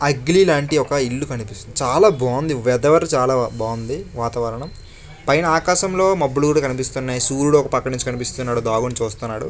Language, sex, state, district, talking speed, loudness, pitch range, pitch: Telugu, male, Andhra Pradesh, Chittoor, 145 wpm, -19 LUFS, 120-145 Hz, 130 Hz